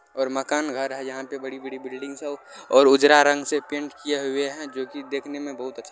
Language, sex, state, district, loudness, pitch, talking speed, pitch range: Hindi, male, Bihar, Supaul, -23 LUFS, 140 Hz, 255 wpm, 135-145 Hz